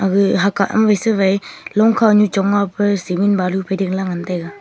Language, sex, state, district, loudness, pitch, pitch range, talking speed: Wancho, female, Arunachal Pradesh, Longding, -16 LUFS, 195 Hz, 190-205 Hz, 195 wpm